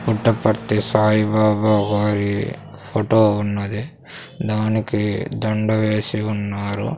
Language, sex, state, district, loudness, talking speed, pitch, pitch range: Telugu, male, Andhra Pradesh, Sri Satya Sai, -19 LUFS, 75 wpm, 110 Hz, 105-110 Hz